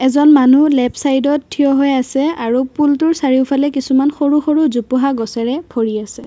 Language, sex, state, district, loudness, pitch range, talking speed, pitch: Assamese, female, Assam, Kamrup Metropolitan, -14 LUFS, 255-290 Hz, 160 wpm, 275 Hz